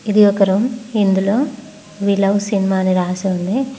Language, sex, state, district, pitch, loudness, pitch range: Telugu, female, Telangana, Mahabubabad, 200 Hz, -17 LUFS, 195-220 Hz